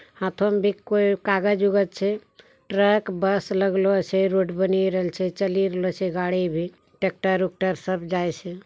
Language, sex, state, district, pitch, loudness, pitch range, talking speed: Angika, male, Bihar, Bhagalpur, 190 Hz, -23 LUFS, 185-200 Hz, 185 wpm